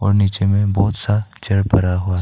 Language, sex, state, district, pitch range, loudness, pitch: Hindi, male, Arunachal Pradesh, Papum Pare, 95-100 Hz, -17 LUFS, 100 Hz